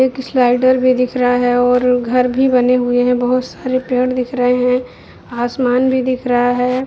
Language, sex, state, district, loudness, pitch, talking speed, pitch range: Hindi, female, Uttar Pradesh, Budaun, -15 LUFS, 250 Hz, 220 wpm, 245-255 Hz